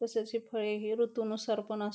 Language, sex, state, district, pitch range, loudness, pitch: Marathi, female, Maharashtra, Pune, 215-230 Hz, -34 LUFS, 220 Hz